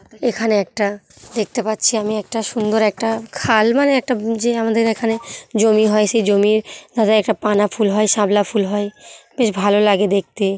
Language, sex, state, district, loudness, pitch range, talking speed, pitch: Bengali, female, West Bengal, Jhargram, -17 LUFS, 205-225 Hz, 170 wpm, 215 Hz